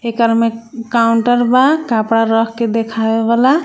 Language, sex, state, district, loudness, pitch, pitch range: Bhojpuri, female, Jharkhand, Palamu, -14 LUFS, 230 Hz, 225-240 Hz